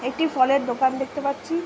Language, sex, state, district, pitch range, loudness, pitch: Bengali, female, West Bengal, Purulia, 260-295 Hz, -23 LUFS, 275 Hz